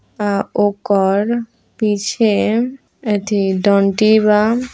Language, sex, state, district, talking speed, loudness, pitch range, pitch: Hindi, female, Bihar, East Champaran, 65 wpm, -16 LUFS, 200-225 Hz, 210 Hz